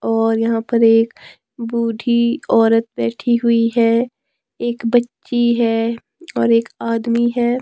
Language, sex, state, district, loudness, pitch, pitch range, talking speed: Hindi, male, Himachal Pradesh, Shimla, -17 LUFS, 235 Hz, 230-240 Hz, 125 wpm